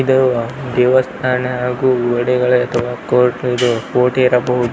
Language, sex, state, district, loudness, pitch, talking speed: Kannada, male, Karnataka, Belgaum, -15 LUFS, 125 Hz, 115 wpm